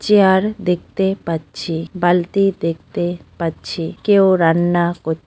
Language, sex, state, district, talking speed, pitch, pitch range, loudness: Bengali, female, West Bengal, North 24 Parganas, 115 wpm, 175 Hz, 165-190 Hz, -17 LUFS